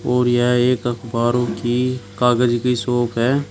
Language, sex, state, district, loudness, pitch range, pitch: Hindi, male, Uttar Pradesh, Shamli, -18 LUFS, 120-125 Hz, 120 Hz